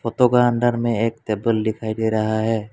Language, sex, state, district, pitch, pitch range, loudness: Hindi, male, Assam, Kamrup Metropolitan, 115 Hz, 110-120 Hz, -20 LUFS